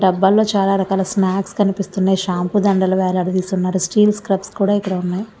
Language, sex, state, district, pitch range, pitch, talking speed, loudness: Telugu, female, Andhra Pradesh, Visakhapatnam, 185-200 Hz, 195 Hz, 135 wpm, -17 LUFS